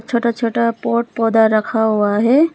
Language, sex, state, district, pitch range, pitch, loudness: Hindi, female, Arunachal Pradesh, Lower Dibang Valley, 220-235 Hz, 230 Hz, -16 LUFS